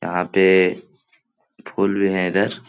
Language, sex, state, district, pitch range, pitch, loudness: Hindi, male, Uttar Pradesh, Etah, 90-100 Hz, 95 Hz, -18 LUFS